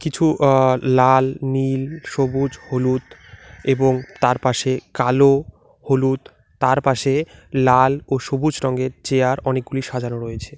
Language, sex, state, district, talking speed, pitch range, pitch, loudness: Bengali, male, West Bengal, Alipurduar, 120 wpm, 130-135 Hz, 130 Hz, -19 LUFS